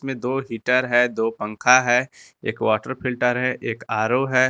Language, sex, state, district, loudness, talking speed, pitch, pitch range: Hindi, male, Jharkhand, Garhwa, -21 LUFS, 175 wpm, 125 Hz, 115-130 Hz